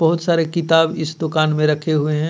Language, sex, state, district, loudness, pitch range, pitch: Hindi, male, Jharkhand, Ranchi, -18 LUFS, 155-165 Hz, 160 Hz